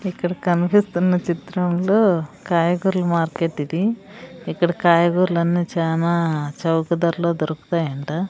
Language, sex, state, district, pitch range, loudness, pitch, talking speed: Telugu, female, Andhra Pradesh, Sri Satya Sai, 165-180 Hz, -20 LUFS, 170 Hz, 95 wpm